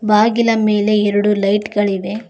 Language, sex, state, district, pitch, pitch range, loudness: Kannada, female, Karnataka, Koppal, 210 Hz, 205-215 Hz, -15 LUFS